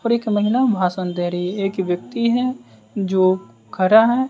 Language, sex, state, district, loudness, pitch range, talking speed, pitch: Hindi, male, Bihar, West Champaran, -19 LUFS, 180-235 Hz, 180 wpm, 195 Hz